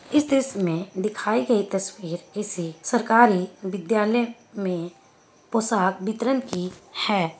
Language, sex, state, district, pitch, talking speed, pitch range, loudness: Hindi, female, Bihar, Gaya, 205 Hz, 120 wpm, 185-235 Hz, -24 LUFS